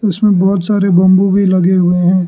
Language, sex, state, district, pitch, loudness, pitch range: Hindi, male, Arunachal Pradesh, Lower Dibang Valley, 190 Hz, -11 LUFS, 185-195 Hz